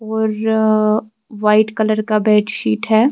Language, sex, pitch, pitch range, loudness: Urdu, female, 215 Hz, 215-220 Hz, -16 LUFS